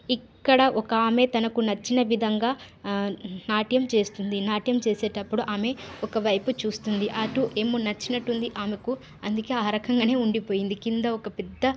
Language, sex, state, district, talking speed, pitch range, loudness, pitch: Telugu, female, Telangana, Nalgonda, 145 wpm, 210-245 Hz, -26 LUFS, 225 Hz